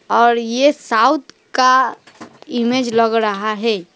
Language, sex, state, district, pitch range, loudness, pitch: Hindi, female, West Bengal, Alipurduar, 225-260 Hz, -16 LUFS, 235 Hz